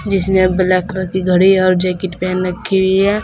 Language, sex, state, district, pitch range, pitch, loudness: Hindi, female, Uttar Pradesh, Saharanpur, 185-190 Hz, 185 Hz, -14 LUFS